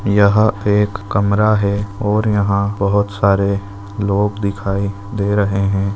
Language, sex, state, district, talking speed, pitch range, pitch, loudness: Hindi, male, Maharashtra, Aurangabad, 130 wpm, 100-105 Hz, 100 Hz, -17 LUFS